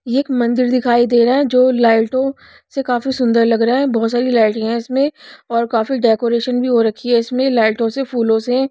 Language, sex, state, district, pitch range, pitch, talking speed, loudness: Hindi, female, Odisha, Nuapada, 230-255 Hz, 245 Hz, 220 wpm, -15 LUFS